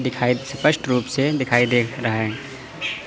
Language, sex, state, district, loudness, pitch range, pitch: Hindi, male, Chandigarh, Chandigarh, -21 LUFS, 120-135 Hz, 130 Hz